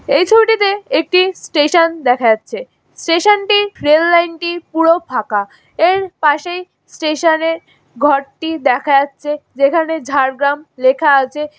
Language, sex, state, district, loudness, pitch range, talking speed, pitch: Bengali, female, West Bengal, Jhargram, -14 LUFS, 280-345 Hz, 125 wpm, 320 Hz